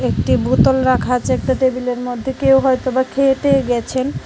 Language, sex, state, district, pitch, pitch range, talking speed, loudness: Bengali, female, Tripura, West Tripura, 260 Hz, 250-265 Hz, 170 wpm, -16 LUFS